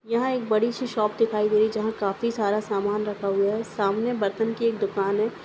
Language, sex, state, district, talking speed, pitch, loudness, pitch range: Hindi, female, Maharashtra, Sindhudurg, 230 wpm, 215 Hz, -25 LUFS, 205-230 Hz